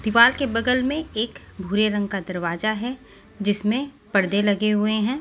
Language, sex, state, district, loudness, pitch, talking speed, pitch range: Hindi, female, Maharashtra, Washim, -21 LUFS, 215 Hz, 175 wpm, 205-240 Hz